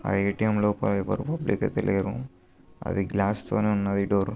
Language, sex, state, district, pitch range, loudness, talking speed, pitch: Telugu, male, Telangana, Karimnagar, 95-105 Hz, -26 LUFS, 180 wpm, 100 Hz